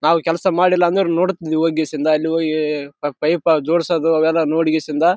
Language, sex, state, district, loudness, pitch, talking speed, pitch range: Kannada, male, Karnataka, Raichur, -17 LUFS, 160 Hz, 150 wpm, 155-170 Hz